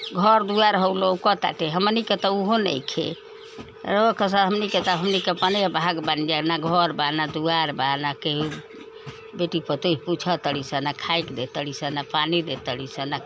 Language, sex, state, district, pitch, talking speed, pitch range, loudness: Bhojpuri, female, Uttar Pradesh, Ghazipur, 170 Hz, 165 wpm, 150-195 Hz, -23 LUFS